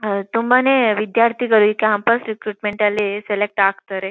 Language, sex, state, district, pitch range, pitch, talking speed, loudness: Kannada, female, Karnataka, Dakshina Kannada, 205-230 Hz, 215 Hz, 115 wpm, -17 LUFS